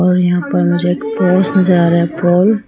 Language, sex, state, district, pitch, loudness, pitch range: Hindi, female, Arunachal Pradesh, Lower Dibang Valley, 175 Hz, -13 LUFS, 155-180 Hz